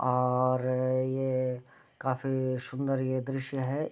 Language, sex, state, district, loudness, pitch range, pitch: Hindi, male, Bihar, Gopalganj, -30 LUFS, 130-135 Hz, 130 Hz